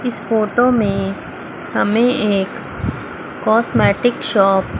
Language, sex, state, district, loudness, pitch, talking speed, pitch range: Hindi, female, Chandigarh, Chandigarh, -17 LUFS, 220 Hz, 100 wpm, 195-240 Hz